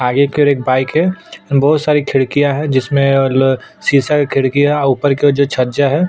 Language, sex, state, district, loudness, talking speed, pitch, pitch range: Hindi, male, Chhattisgarh, Sukma, -13 LUFS, 215 wpm, 140 Hz, 135-145 Hz